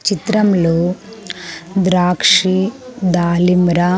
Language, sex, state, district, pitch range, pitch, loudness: Telugu, female, Andhra Pradesh, Sri Satya Sai, 175-195 Hz, 185 Hz, -14 LUFS